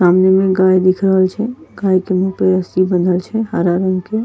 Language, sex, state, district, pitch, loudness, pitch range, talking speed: Angika, female, Bihar, Bhagalpur, 185 Hz, -15 LUFS, 185-195 Hz, 225 wpm